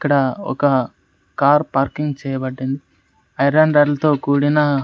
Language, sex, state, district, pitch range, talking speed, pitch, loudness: Telugu, male, Andhra Pradesh, Sri Satya Sai, 135-145 Hz, 100 wpm, 140 Hz, -17 LUFS